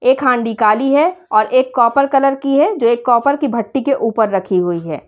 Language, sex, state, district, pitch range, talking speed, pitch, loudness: Hindi, female, Uttar Pradesh, Shamli, 220-275 Hz, 235 wpm, 250 Hz, -14 LUFS